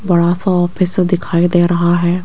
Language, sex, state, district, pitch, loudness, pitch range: Hindi, female, Rajasthan, Jaipur, 175 Hz, -14 LUFS, 175-185 Hz